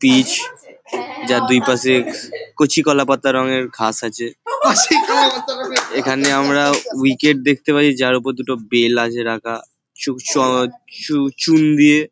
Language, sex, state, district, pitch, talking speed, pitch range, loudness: Bengali, male, West Bengal, Paschim Medinipur, 135 Hz, 135 wpm, 125-155 Hz, -16 LUFS